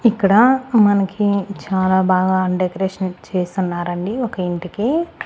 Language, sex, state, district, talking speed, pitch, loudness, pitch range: Telugu, female, Andhra Pradesh, Annamaya, 90 wpm, 190 Hz, -18 LUFS, 185-215 Hz